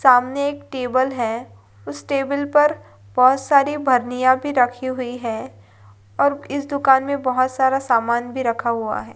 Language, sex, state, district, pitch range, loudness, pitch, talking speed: Maithili, female, Bihar, Lakhisarai, 230-275 Hz, -19 LUFS, 255 Hz, 155 wpm